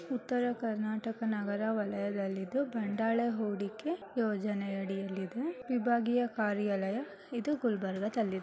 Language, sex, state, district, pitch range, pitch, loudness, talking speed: Kannada, male, Karnataka, Gulbarga, 200-240 Hz, 220 Hz, -34 LUFS, 90 wpm